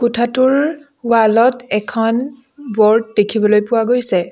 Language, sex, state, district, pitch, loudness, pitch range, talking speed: Assamese, female, Assam, Sonitpur, 235 Hz, -15 LUFS, 215-255 Hz, 110 wpm